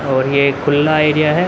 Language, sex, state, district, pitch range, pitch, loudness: Hindi, male, Uttar Pradesh, Muzaffarnagar, 140-155 Hz, 145 Hz, -14 LUFS